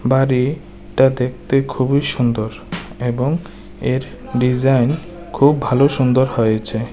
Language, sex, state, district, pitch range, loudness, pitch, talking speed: Bengali, male, Tripura, West Tripura, 125-140 Hz, -17 LUFS, 130 Hz, 95 wpm